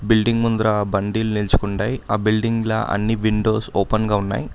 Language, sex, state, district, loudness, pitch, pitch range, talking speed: Telugu, male, Karnataka, Bangalore, -20 LUFS, 110 Hz, 105-110 Hz, 145 wpm